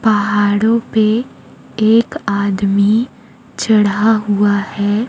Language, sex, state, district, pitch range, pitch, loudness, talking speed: Hindi, female, Chhattisgarh, Raipur, 205-225 Hz, 215 Hz, -14 LUFS, 80 wpm